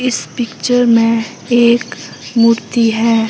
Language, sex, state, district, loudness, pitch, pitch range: Hindi, female, Himachal Pradesh, Shimla, -13 LUFS, 230 Hz, 230-240 Hz